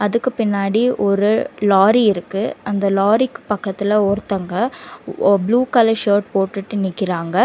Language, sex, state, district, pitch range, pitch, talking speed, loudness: Tamil, female, Karnataka, Bangalore, 195-225 Hz, 205 Hz, 120 wpm, -17 LUFS